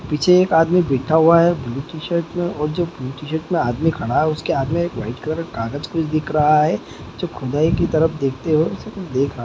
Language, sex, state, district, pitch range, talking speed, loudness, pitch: Hindi, male, Bihar, East Champaran, 140-170 Hz, 265 wpm, -19 LUFS, 155 Hz